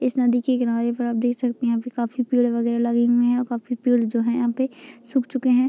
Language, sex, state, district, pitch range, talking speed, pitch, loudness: Hindi, female, Bihar, Gopalganj, 235-250 Hz, 285 wpm, 245 Hz, -22 LUFS